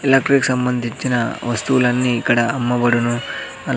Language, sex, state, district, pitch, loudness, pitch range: Telugu, male, Andhra Pradesh, Sri Satya Sai, 125 Hz, -18 LUFS, 120-130 Hz